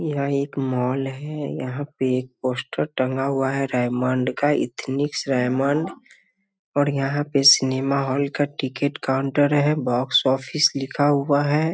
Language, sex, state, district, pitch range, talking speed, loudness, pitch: Hindi, male, Bihar, Muzaffarpur, 130-145 Hz, 150 wpm, -22 LUFS, 140 Hz